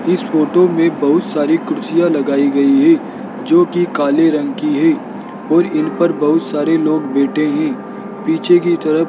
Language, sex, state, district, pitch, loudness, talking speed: Hindi, male, Rajasthan, Jaipur, 175 Hz, -14 LUFS, 170 wpm